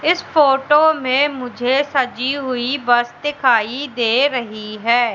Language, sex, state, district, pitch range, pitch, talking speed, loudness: Hindi, female, Madhya Pradesh, Katni, 240-285 Hz, 260 Hz, 130 wpm, -17 LUFS